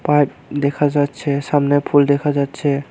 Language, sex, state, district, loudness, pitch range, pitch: Bengali, male, Tripura, Unakoti, -17 LUFS, 140-145 Hz, 145 Hz